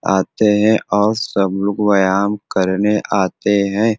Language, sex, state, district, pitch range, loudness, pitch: Bhojpuri, male, Uttar Pradesh, Varanasi, 95-105 Hz, -16 LUFS, 100 Hz